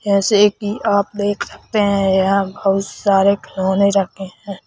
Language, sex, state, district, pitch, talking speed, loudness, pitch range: Hindi, male, Madhya Pradesh, Bhopal, 200 Hz, 155 wpm, -17 LUFS, 195-205 Hz